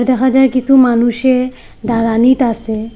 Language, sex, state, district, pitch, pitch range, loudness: Bengali, female, Assam, Hailakandi, 250 Hz, 230-260 Hz, -12 LUFS